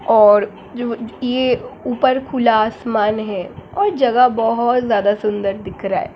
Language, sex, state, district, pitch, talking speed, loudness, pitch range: Hindi, female, Jharkhand, Jamtara, 225 Hz, 135 wpm, -17 LUFS, 210-250 Hz